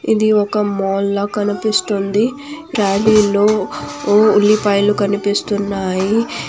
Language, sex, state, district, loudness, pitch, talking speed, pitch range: Telugu, female, Andhra Pradesh, Anantapur, -15 LUFS, 205 Hz, 85 wpm, 200-215 Hz